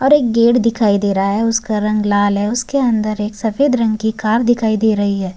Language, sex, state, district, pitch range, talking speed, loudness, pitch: Hindi, male, Uttarakhand, Tehri Garhwal, 205-235 Hz, 245 wpm, -15 LUFS, 220 Hz